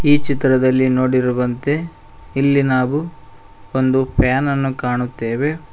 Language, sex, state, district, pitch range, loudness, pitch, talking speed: Kannada, male, Karnataka, Koppal, 125-140 Hz, -17 LUFS, 130 Hz, 95 wpm